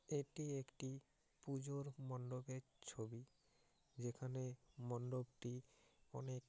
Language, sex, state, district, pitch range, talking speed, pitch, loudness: Bengali, male, West Bengal, Paschim Medinipur, 125-135 Hz, 75 wpm, 130 Hz, -50 LUFS